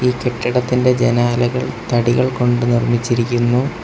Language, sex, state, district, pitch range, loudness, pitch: Malayalam, male, Kerala, Kollam, 120-125 Hz, -16 LUFS, 120 Hz